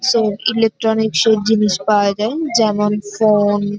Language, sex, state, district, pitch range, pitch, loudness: Bengali, female, West Bengal, North 24 Parganas, 205-225 Hz, 215 Hz, -15 LUFS